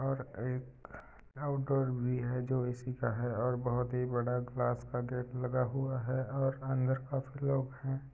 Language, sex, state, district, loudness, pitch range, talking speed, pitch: Hindi, male, Uttar Pradesh, Jyotiba Phule Nagar, -35 LUFS, 125-135 Hz, 175 wpm, 125 Hz